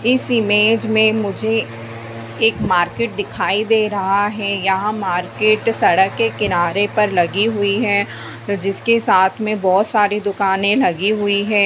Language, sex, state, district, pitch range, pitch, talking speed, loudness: Hindi, female, Bihar, Bhagalpur, 195-220 Hz, 205 Hz, 145 wpm, -17 LUFS